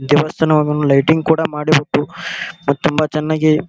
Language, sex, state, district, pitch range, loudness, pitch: Kannada, male, Karnataka, Gulbarga, 150-155 Hz, -16 LUFS, 155 Hz